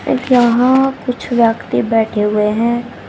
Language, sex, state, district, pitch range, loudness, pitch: Hindi, female, Haryana, Rohtak, 225-250 Hz, -14 LUFS, 240 Hz